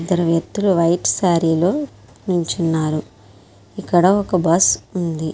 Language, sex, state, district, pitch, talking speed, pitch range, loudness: Telugu, female, Andhra Pradesh, Srikakulam, 170 Hz, 100 wpm, 160-180 Hz, -18 LUFS